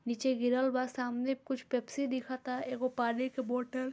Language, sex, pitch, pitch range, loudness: Bhojpuri, female, 255 Hz, 250-260 Hz, -34 LUFS